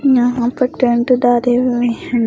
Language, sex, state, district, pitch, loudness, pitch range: Hindi, female, Maharashtra, Washim, 245 Hz, -15 LUFS, 240-250 Hz